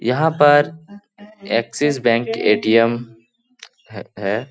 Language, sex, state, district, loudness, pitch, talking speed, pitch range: Hindi, male, Bihar, Lakhisarai, -17 LUFS, 125 Hz, 95 wpm, 115-160 Hz